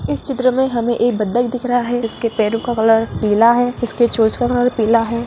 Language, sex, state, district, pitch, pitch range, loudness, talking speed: Hindi, female, Bihar, Jamui, 240 Hz, 225-245 Hz, -16 LUFS, 240 wpm